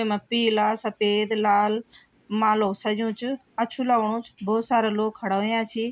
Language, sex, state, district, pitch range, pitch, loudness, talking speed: Garhwali, female, Uttarakhand, Tehri Garhwal, 210-230 Hz, 220 Hz, -24 LUFS, 170 wpm